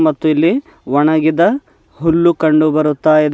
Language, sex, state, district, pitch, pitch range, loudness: Kannada, male, Karnataka, Bidar, 155 Hz, 155-170 Hz, -14 LUFS